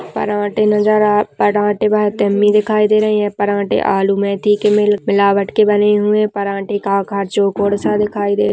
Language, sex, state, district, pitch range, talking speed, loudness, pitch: Hindi, female, Rajasthan, Nagaur, 200-210 Hz, 190 wpm, -15 LUFS, 205 Hz